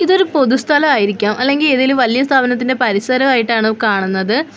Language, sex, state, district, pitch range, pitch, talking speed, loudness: Malayalam, female, Kerala, Kollam, 220-275 Hz, 255 Hz, 120 wpm, -14 LUFS